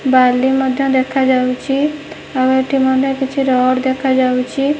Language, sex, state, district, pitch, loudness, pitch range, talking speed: Odia, female, Odisha, Nuapada, 265 Hz, -15 LUFS, 255-270 Hz, 135 wpm